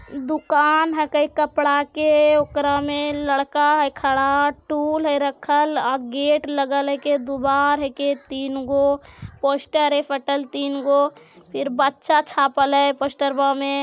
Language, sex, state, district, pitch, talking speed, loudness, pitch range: Magahi, female, Bihar, Jamui, 285 Hz, 135 wpm, -20 LUFS, 275-295 Hz